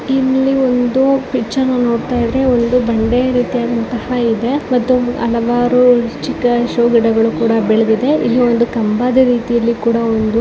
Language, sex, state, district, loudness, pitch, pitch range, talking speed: Kannada, female, Karnataka, Dakshina Kannada, -14 LUFS, 240 Hz, 235-250 Hz, 125 wpm